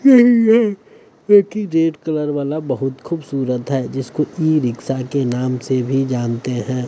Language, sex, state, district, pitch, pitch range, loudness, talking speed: Hindi, male, Bihar, West Champaran, 135 Hz, 130-165 Hz, -18 LUFS, 140 wpm